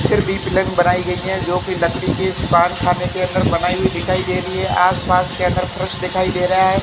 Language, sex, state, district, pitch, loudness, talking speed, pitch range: Hindi, male, Rajasthan, Barmer, 180 Hz, -17 LUFS, 245 wpm, 180-185 Hz